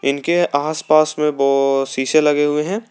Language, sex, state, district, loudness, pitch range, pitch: Hindi, male, Jharkhand, Garhwa, -17 LUFS, 140-155 Hz, 150 Hz